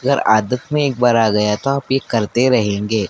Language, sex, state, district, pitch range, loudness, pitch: Hindi, male, Madhya Pradesh, Dhar, 110-135 Hz, -16 LUFS, 120 Hz